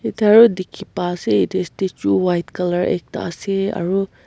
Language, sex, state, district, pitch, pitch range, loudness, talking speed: Nagamese, female, Nagaland, Kohima, 185 Hz, 175-195 Hz, -18 LUFS, 170 wpm